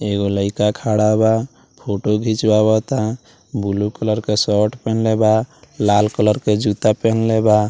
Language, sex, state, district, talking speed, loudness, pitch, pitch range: Bhojpuri, male, Bihar, Muzaffarpur, 140 wpm, -17 LUFS, 110 Hz, 105-110 Hz